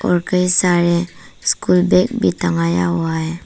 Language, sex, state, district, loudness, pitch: Hindi, female, Arunachal Pradesh, Papum Pare, -16 LUFS, 165 Hz